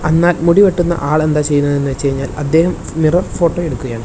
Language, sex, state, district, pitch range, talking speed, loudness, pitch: Malayalam, male, Kerala, Kasaragod, 140-170 Hz, 195 wpm, -14 LUFS, 155 Hz